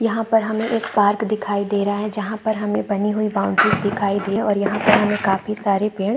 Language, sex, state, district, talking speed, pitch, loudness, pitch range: Hindi, female, Chhattisgarh, Bastar, 260 wpm, 210 Hz, -20 LUFS, 205-215 Hz